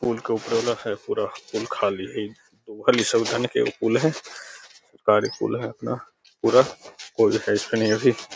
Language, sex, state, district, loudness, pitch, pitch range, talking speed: Hindi, male, Bihar, Gaya, -23 LUFS, 115 Hz, 110-120 Hz, 95 wpm